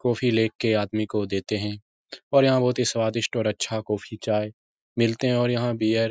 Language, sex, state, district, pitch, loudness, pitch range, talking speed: Hindi, male, Uttar Pradesh, Etah, 110 Hz, -24 LUFS, 105-120 Hz, 195 wpm